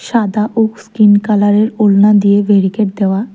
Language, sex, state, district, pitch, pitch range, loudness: Bengali, female, Tripura, West Tripura, 210 Hz, 205-215 Hz, -11 LUFS